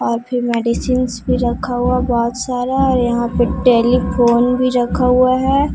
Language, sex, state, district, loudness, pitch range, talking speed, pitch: Hindi, female, Jharkhand, Deoghar, -15 LUFS, 240-255 Hz, 165 wpm, 245 Hz